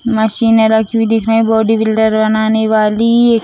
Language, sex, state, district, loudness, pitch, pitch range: Hindi, female, Bihar, Sitamarhi, -12 LUFS, 220 Hz, 220-225 Hz